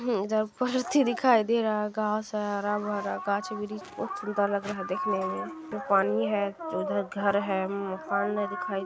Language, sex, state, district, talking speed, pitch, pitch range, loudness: Hindi, female, Bihar, Bhagalpur, 170 wpm, 205 Hz, 200-215 Hz, -28 LUFS